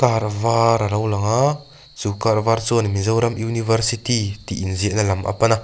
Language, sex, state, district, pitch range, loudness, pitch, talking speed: Mizo, male, Mizoram, Aizawl, 105-115 Hz, -20 LUFS, 115 Hz, 190 wpm